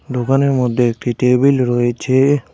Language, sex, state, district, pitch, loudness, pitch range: Bengali, male, West Bengal, Cooch Behar, 125 Hz, -15 LUFS, 120-135 Hz